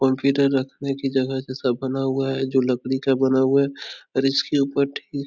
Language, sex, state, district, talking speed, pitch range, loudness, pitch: Hindi, male, Uttar Pradesh, Etah, 230 wpm, 130-140 Hz, -22 LUFS, 135 Hz